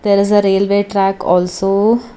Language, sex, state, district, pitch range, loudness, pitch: English, female, Karnataka, Bangalore, 195-205 Hz, -14 LUFS, 200 Hz